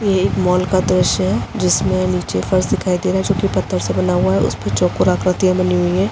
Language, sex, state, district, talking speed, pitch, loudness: Hindi, female, Uttar Pradesh, Jalaun, 245 wpm, 180 Hz, -17 LUFS